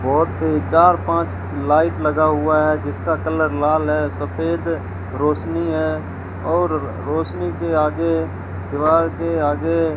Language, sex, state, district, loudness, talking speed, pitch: Hindi, male, Rajasthan, Bikaner, -19 LUFS, 140 wpm, 95 Hz